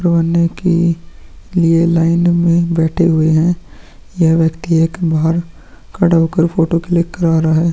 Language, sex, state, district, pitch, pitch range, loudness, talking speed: Hindi, male, Uttarakhand, Tehri Garhwal, 170 Hz, 165-170 Hz, -14 LUFS, 145 wpm